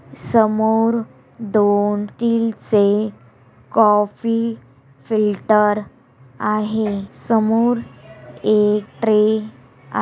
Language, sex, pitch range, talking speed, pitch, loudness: Marathi, female, 135-220 Hz, 65 wpm, 210 Hz, -18 LUFS